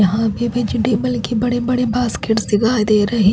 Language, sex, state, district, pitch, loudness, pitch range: Hindi, female, Chhattisgarh, Raipur, 230 Hz, -17 LUFS, 215-245 Hz